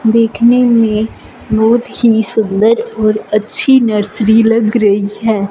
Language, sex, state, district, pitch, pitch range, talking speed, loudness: Hindi, male, Punjab, Fazilka, 220 Hz, 215-230 Hz, 120 wpm, -12 LUFS